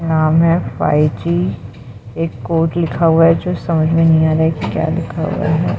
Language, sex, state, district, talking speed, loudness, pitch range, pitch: Hindi, female, Maharashtra, Mumbai Suburban, 215 wpm, -15 LUFS, 125-165 Hz, 160 Hz